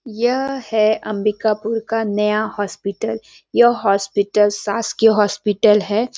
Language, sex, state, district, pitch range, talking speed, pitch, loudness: Hindi, female, Chhattisgarh, Sarguja, 205-225 Hz, 105 wpm, 215 Hz, -18 LUFS